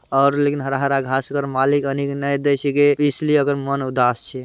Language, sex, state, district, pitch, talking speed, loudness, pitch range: Hindi, male, Bihar, Araria, 140 Hz, 120 wpm, -19 LUFS, 135-145 Hz